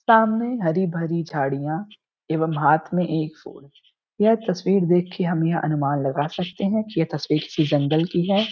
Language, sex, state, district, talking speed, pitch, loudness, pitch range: Hindi, male, Uttar Pradesh, Gorakhpur, 185 wpm, 165 Hz, -22 LUFS, 155-195 Hz